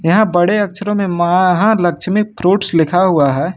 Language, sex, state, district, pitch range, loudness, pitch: Hindi, male, Jharkhand, Ranchi, 175-205 Hz, -14 LUFS, 185 Hz